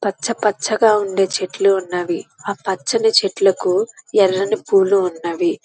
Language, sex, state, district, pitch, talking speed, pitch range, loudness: Telugu, female, Andhra Pradesh, Krishna, 200 Hz, 105 wpm, 190-225 Hz, -17 LUFS